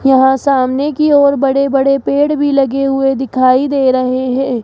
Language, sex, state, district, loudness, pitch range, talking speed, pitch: Hindi, female, Rajasthan, Jaipur, -12 LUFS, 260-280 Hz, 180 wpm, 270 Hz